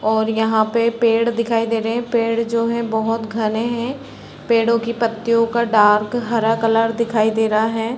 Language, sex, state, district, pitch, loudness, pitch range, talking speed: Hindi, female, Chhattisgarh, Raigarh, 230 Hz, -18 LUFS, 220-235 Hz, 190 wpm